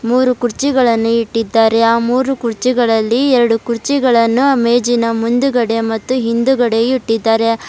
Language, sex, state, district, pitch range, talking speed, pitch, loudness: Kannada, female, Karnataka, Bidar, 230-255 Hz, 110 wpm, 235 Hz, -14 LUFS